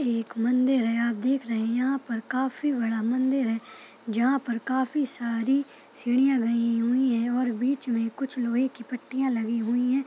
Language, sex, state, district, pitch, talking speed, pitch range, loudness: Hindi, female, Chhattisgarh, Balrampur, 245 Hz, 190 wpm, 230-260 Hz, -26 LUFS